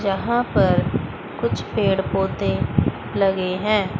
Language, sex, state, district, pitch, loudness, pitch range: Hindi, female, Chandigarh, Chandigarh, 195 Hz, -21 LUFS, 190-215 Hz